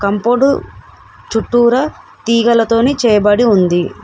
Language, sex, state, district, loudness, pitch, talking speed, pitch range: Telugu, female, Telangana, Komaram Bheem, -13 LUFS, 230 Hz, 75 wpm, 210-240 Hz